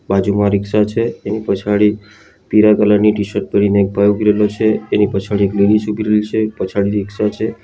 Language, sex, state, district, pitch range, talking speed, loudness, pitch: Gujarati, male, Gujarat, Valsad, 100-105 Hz, 190 wpm, -15 LUFS, 105 Hz